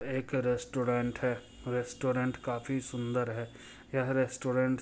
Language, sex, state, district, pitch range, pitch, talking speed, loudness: Hindi, male, Bihar, Muzaffarpur, 120-130 Hz, 125 Hz, 110 wpm, -33 LUFS